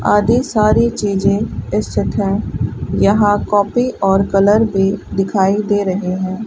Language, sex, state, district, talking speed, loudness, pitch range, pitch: Hindi, female, Rajasthan, Bikaner, 130 wpm, -15 LUFS, 195-210 Hz, 200 Hz